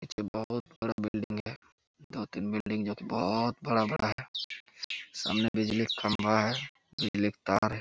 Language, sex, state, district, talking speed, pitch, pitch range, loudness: Hindi, male, Jharkhand, Jamtara, 190 wpm, 110 Hz, 105-115 Hz, -32 LUFS